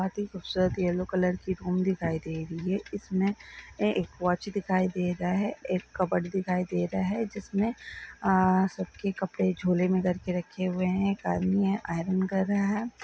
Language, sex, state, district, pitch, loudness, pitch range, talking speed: Hindi, female, Karnataka, Belgaum, 185 Hz, -29 LUFS, 180-195 Hz, 195 wpm